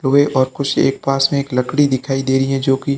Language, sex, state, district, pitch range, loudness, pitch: Hindi, male, Rajasthan, Barmer, 135-140 Hz, -16 LUFS, 135 Hz